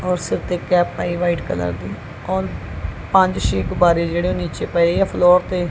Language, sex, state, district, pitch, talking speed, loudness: Punjabi, female, Punjab, Kapurthala, 175 Hz, 200 wpm, -19 LUFS